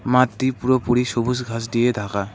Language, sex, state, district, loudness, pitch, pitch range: Bengali, male, West Bengal, Cooch Behar, -21 LUFS, 120 Hz, 115-125 Hz